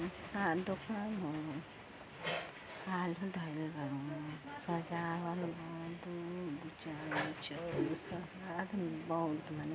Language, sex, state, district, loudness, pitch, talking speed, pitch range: Hindi, female, Uttar Pradesh, Gorakhpur, -41 LUFS, 165 Hz, 130 wpm, 155-175 Hz